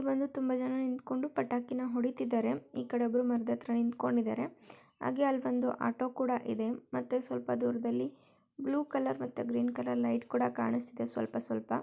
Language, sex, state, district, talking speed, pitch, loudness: Kannada, female, Karnataka, Shimoga, 160 wpm, 235 Hz, -34 LUFS